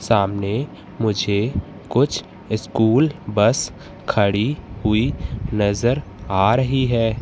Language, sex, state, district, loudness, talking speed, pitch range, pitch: Hindi, male, Madhya Pradesh, Katni, -20 LUFS, 90 wpm, 100-120 Hz, 110 Hz